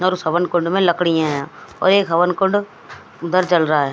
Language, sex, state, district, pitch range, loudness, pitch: Hindi, female, Haryana, Rohtak, 160-185 Hz, -17 LUFS, 175 Hz